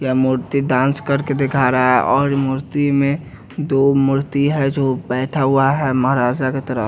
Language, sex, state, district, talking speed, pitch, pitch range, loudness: Hindi, male, Bihar, West Champaran, 175 wpm, 135 Hz, 130-140 Hz, -17 LUFS